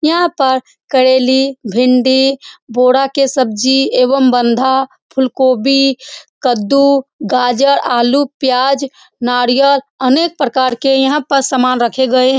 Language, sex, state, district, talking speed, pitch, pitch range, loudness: Hindi, female, Bihar, Saran, 115 wpm, 265 Hz, 255-275 Hz, -12 LUFS